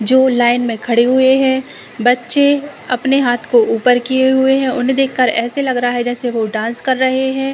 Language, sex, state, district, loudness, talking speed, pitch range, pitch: Hindi, female, Uttar Pradesh, Deoria, -14 LUFS, 205 wpm, 245-265 Hz, 255 Hz